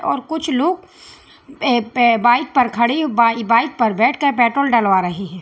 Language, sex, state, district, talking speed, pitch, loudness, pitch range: Hindi, female, Uttar Pradesh, Lalitpur, 175 wpm, 240 Hz, -16 LUFS, 230-280 Hz